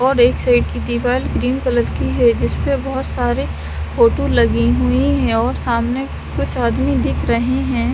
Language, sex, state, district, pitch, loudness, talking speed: Hindi, female, Haryana, Charkhi Dadri, 235 Hz, -17 LUFS, 175 wpm